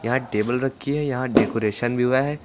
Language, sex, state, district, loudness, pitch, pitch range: Hindi, male, Uttar Pradesh, Lucknow, -22 LUFS, 130 Hz, 120-135 Hz